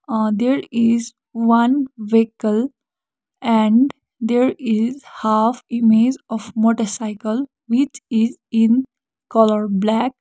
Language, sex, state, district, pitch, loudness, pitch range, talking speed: English, female, Sikkim, Gangtok, 230 Hz, -18 LUFS, 225-255 Hz, 100 wpm